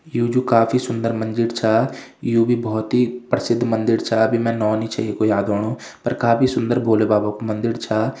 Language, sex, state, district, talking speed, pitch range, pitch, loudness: Hindi, male, Uttarakhand, Uttarkashi, 205 wpm, 110-120 Hz, 115 Hz, -19 LUFS